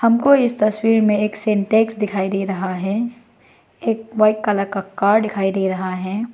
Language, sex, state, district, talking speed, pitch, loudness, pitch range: Hindi, female, Arunachal Pradesh, Lower Dibang Valley, 180 wpm, 210 Hz, -18 LUFS, 195-225 Hz